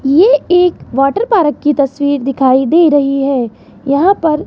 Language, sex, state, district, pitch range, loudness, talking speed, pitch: Hindi, female, Rajasthan, Jaipur, 275-335 Hz, -12 LUFS, 150 wpm, 285 Hz